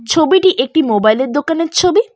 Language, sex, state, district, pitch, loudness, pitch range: Bengali, female, West Bengal, Cooch Behar, 320 Hz, -13 LUFS, 265-370 Hz